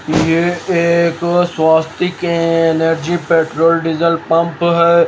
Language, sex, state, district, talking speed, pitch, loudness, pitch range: Hindi, male, Haryana, Rohtak, 95 wpm, 170 Hz, -14 LUFS, 165-170 Hz